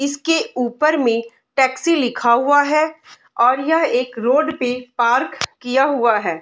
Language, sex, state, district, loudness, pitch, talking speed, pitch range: Hindi, female, Bihar, Darbhanga, -17 LUFS, 260 Hz, 150 wpm, 245-305 Hz